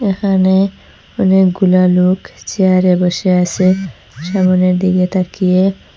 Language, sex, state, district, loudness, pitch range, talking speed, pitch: Bengali, female, Assam, Hailakandi, -13 LUFS, 180-190 Hz, 90 wpm, 185 Hz